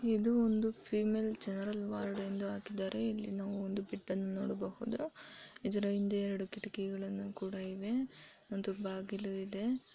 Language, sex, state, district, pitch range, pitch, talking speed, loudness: Kannada, female, Karnataka, Dharwad, 195-215 Hz, 200 Hz, 135 wpm, -38 LUFS